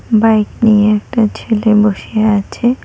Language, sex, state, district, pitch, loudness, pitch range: Bengali, female, West Bengal, Cooch Behar, 215 Hz, -13 LUFS, 210-225 Hz